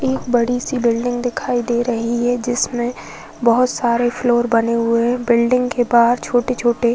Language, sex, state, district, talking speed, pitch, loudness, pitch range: Hindi, female, Uttar Pradesh, Varanasi, 180 wpm, 240 Hz, -17 LUFS, 235-245 Hz